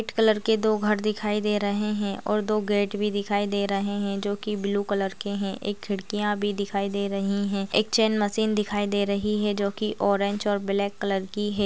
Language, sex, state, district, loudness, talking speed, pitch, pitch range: Hindi, female, Uttar Pradesh, Ghazipur, -26 LUFS, 225 wpm, 205 Hz, 200-210 Hz